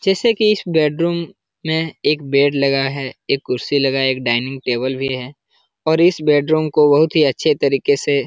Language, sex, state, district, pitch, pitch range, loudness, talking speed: Hindi, male, Uttar Pradesh, Jalaun, 145 Hz, 135-160 Hz, -17 LUFS, 205 wpm